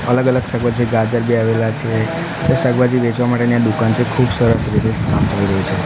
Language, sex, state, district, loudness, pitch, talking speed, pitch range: Gujarati, male, Gujarat, Gandhinagar, -16 LUFS, 120 Hz, 215 wpm, 115-125 Hz